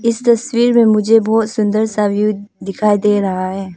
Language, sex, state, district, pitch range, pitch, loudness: Hindi, female, Arunachal Pradesh, Papum Pare, 205-225 Hz, 215 Hz, -14 LUFS